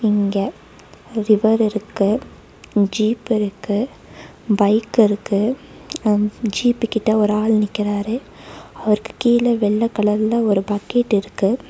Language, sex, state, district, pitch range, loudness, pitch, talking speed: Tamil, female, Tamil Nadu, Nilgiris, 205-230 Hz, -19 LUFS, 215 Hz, 95 wpm